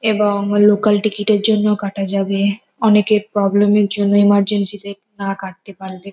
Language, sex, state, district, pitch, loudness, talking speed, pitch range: Bengali, female, West Bengal, North 24 Parganas, 205 Hz, -16 LUFS, 125 wpm, 200-210 Hz